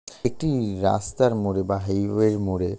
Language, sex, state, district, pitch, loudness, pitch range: Bengali, male, West Bengal, North 24 Parganas, 100 Hz, -24 LUFS, 95-115 Hz